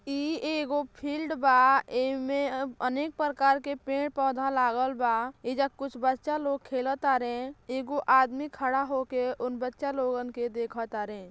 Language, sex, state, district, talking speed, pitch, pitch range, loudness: Bhojpuri, female, Uttar Pradesh, Gorakhpur, 140 wpm, 265 Hz, 250-280 Hz, -29 LUFS